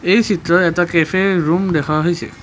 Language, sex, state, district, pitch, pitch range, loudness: Assamese, male, Assam, Kamrup Metropolitan, 175 Hz, 165-185 Hz, -15 LUFS